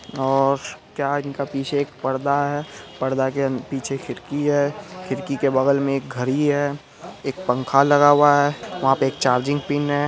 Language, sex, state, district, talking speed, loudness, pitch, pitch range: Hindi, male, Bihar, Araria, 180 wpm, -21 LUFS, 140 Hz, 135-145 Hz